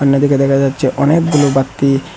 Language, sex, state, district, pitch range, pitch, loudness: Bengali, male, Assam, Hailakandi, 135-145 Hz, 140 Hz, -13 LUFS